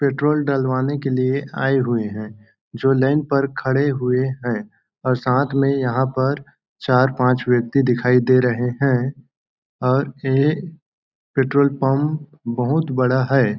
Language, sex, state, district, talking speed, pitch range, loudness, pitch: Hindi, male, Chhattisgarh, Balrampur, 135 wpm, 125-140 Hz, -19 LUFS, 130 Hz